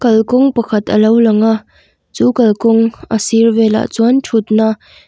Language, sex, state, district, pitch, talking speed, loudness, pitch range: Mizo, female, Mizoram, Aizawl, 225 Hz, 165 wpm, -12 LUFS, 220-235 Hz